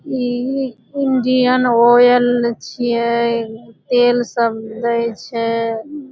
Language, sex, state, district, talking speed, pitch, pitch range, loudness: Maithili, female, Bihar, Supaul, 80 wpm, 240 Hz, 230-250 Hz, -16 LUFS